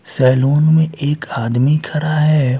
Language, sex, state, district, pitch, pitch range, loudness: Hindi, male, Bihar, Patna, 145 Hz, 130-155 Hz, -15 LUFS